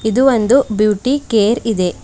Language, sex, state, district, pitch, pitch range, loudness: Kannada, female, Karnataka, Bidar, 225 Hz, 210-260 Hz, -14 LUFS